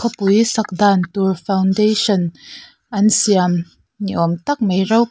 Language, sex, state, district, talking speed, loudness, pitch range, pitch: Mizo, female, Mizoram, Aizawl, 140 wpm, -16 LUFS, 190-215 Hz, 200 Hz